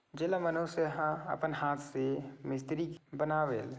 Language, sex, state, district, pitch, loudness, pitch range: Chhattisgarhi, male, Chhattisgarh, Sarguja, 155 Hz, -35 LUFS, 140-165 Hz